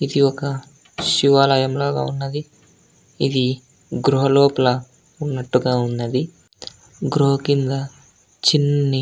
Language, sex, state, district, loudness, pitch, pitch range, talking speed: Telugu, male, Andhra Pradesh, Anantapur, -19 LUFS, 140 Hz, 130-140 Hz, 85 wpm